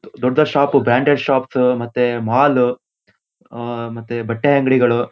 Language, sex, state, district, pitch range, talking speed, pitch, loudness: Kannada, male, Karnataka, Shimoga, 120-140 Hz, 130 wpm, 125 Hz, -16 LUFS